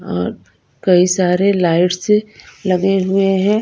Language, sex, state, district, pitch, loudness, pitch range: Hindi, female, Punjab, Kapurthala, 190 Hz, -15 LUFS, 180-195 Hz